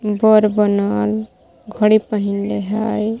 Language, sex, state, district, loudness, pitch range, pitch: Magahi, female, Jharkhand, Palamu, -17 LUFS, 200-215 Hz, 210 Hz